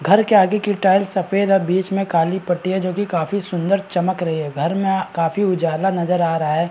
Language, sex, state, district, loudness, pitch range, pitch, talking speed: Hindi, male, Chhattisgarh, Rajnandgaon, -19 LUFS, 170-195 Hz, 185 Hz, 250 wpm